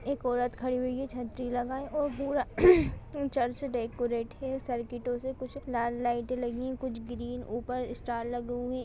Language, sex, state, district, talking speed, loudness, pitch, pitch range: Hindi, female, Bihar, Saran, 175 wpm, -32 LUFS, 250 Hz, 240-265 Hz